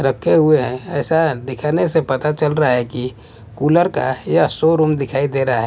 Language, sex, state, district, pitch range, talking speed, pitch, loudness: Hindi, male, Bihar, West Champaran, 130-155 Hz, 200 wpm, 145 Hz, -17 LUFS